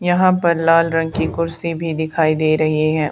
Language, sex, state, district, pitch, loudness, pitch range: Hindi, female, Haryana, Charkhi Dadri, 165 Hz, -17 LUFS, 155-165 Hz